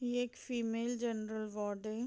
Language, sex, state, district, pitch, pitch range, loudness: Hindi, female, Bihar, Madhepura, 230 Hz, 215-245 Hz, -39 LUFS